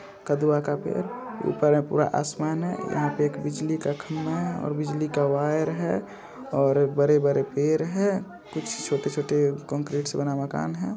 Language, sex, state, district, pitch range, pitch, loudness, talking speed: Hindi, male, Bihar, Saharsa, 145-160 Hz, 150 Hz, -26 LUFS, 170 wpm